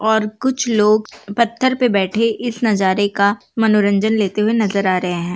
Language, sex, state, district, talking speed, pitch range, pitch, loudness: Hindi, female, Uttar Pradesh, Jalaun, 180 wpm, 200-230 Hz, 215 Hz, -17 LUFS